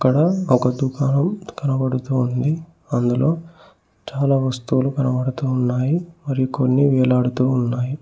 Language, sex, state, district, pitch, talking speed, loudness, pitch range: Telugu, male, Telangana, Mahabubabad, 130 Hz, 90 wpm, -20 LUFS, 130-150 Hz